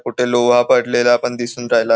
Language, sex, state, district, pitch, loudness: Marathi, male, Maharashtra, Nagpur, 120 Hz, -15 LUFS